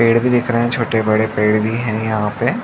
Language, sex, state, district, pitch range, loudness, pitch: Hindi, male, Chhattisgarh, Rajnandgaon, 110-120 Hz, -17 LUFS, 115 Hz